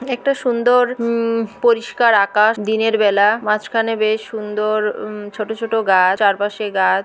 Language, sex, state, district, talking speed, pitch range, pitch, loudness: Bengali, female, West Bengal, Jhargram, 135 wpm, 210-230 Hz, 220 Hz, -17 LUFS